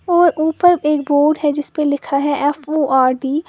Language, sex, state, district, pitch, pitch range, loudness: Hindi, female, Uttar Pradesh, Lalitpur, 295 Hz, 285-310 Hz, -16 LUFS